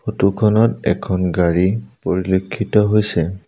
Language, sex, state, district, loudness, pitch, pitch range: Assamese, male, Assam, Sonitpur, -17 LUFS, 100 Hz, 90-105 Hz